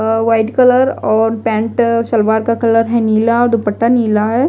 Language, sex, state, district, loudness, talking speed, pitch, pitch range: Hindi, female, Maharashtra, Gondia, -13 LUFS, 185 wpm, 230 Hz, 220-235 Hz